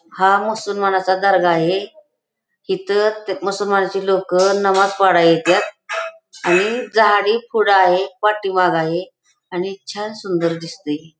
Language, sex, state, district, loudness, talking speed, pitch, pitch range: Marathi, female, Maharashtra, Pune, -17 LUFS, 105 wpm, 195 Hz, 180-215 Hz